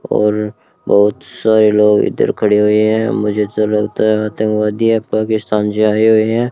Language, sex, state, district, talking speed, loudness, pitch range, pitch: Hindi, male, Rajasthan, Bikaner, 175 wpm, -14 LUFS, 105-110 Hz, 105 Hz